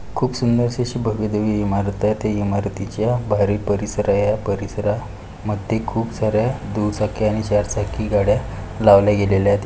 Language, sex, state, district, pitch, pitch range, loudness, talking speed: Marathi, male, Maharashtra, Pune, 105 Hz, 100-110 Hz, -20 LUFS, 145 wpm